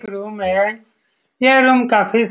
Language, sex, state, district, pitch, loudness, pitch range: Hindi, male, Bihar, Saran, 215 Hz, -15 LUFS, 205-245 Hz